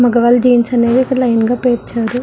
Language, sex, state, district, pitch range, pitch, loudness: Telugu, female, Andhra Pradesh, Visakhapatnam, 235-250 Hz, 245 Hz, -13 LUFS